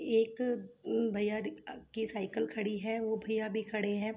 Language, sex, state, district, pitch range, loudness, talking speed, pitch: Hindi, female, Jharkhand, Sahebganj, 210-225 Hz, -35 LUFS, 175 wpm, 220 Hz